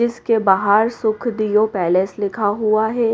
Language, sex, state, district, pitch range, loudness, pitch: Hindi, female, Haryana, Rohtak, 205-225 Hz, -18 LUFS, 215 Hz